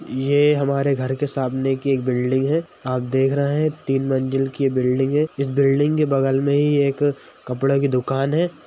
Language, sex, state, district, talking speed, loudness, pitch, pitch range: Hindi, male, Bihar, Madhepura, 210 wpm, -20 LUFS, 135 Hz, 135-145 Hz